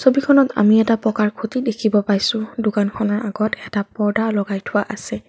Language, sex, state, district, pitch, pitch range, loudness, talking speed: Assamese, female, Assam, Kamrup Metropolitan, 215 Hz, 205-225 Hz, -19 LUFS, 160 wpm